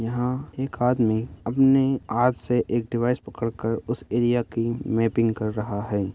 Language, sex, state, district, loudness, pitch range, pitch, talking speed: Hindi, male, Bihar, Madhepura, -24 LUFS, 115-125 Hz, 120 Hz, 165 wpm